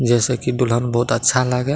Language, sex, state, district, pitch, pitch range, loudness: Maithili, male, Bihar, Madhepura, 125 Hz, 120-125 Hz, -18 LUFS